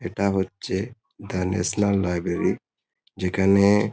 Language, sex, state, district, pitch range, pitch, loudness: Bengali, male, West Bengal, Kolkata, 90-100 Hz, 95 Hz, -23 LUFS